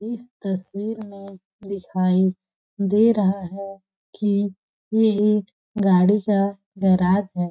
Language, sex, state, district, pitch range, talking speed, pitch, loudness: Hindi, female, Chhattisgarh, Balrampur, 190-210 Hz, 110 wpm, 200 Hz, -21 LUFS